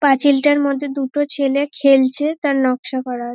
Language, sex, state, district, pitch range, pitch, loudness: Bengali, female, West Bengal, North 24 Parganas, 265-290 Hz, 280 Hz, -17 LUFS